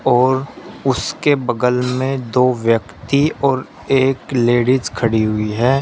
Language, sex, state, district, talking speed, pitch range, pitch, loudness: Hindi, male, Uttar Pradesh, Shamli, 125 wpm, 120-135 Hz, 125 Hz, -17 LUFS